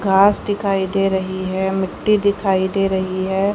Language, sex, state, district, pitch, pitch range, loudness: Hindi, female, Haryana, Jhajjar, 195 Hz, 190-200 Hz, -18 LUFS